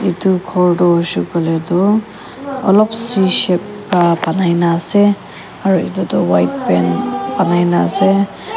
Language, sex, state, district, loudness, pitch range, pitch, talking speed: Nagamese, female, Nagaland, Kohima, -14 LUFS, 170-200 Hz, 185 Hz, 155 wpm